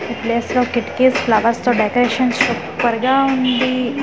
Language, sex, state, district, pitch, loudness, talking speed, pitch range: Telugu, female, Andhra Pradesh, Manyam, 245 Hz, -16 LUFS, 165 wpm, 235-255 Hz